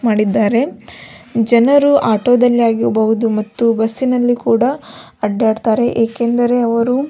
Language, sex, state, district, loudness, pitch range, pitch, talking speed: Kannada, female, Karnataka, Belgaum, -14 LUFS, 225-245 Hz, 235 Hz, 85 wpm